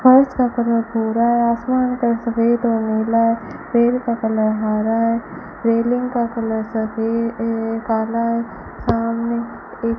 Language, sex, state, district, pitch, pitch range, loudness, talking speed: Hindi, female, Rajasthan, Bikaner, 230 Hz, 225-235 Hz, -19 LUFS, 155 wpm